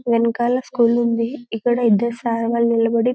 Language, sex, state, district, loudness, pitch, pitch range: Telugu, female, Telangana, Karimnagar, -19 LUFS, 235 Hz, 230-240 Hz